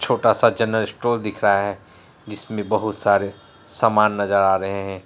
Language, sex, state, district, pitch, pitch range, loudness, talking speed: Hindi, male, Bihar, Araria, 105 Hz, 100-110 Hz, -20 LUFS, 180 wpm